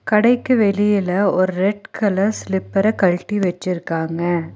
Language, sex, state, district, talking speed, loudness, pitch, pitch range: Tamil, female, Tamil Nadu, Nilgiris, 105 wpm, -18 LUFS, 195 Hz, 180-210 Hz